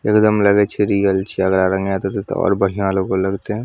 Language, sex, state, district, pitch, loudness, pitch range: Maithili, male, Bihar, Samastipur, 100 Hz, -17 LUFS, 95-105 Hz